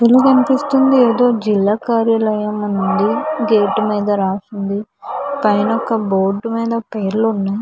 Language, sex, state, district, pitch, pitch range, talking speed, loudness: Telugu, female, Andhra Pradesh, Visakhapatnam, 215 Hz, 205-230 Hz, 150 wpm, -16 LUFS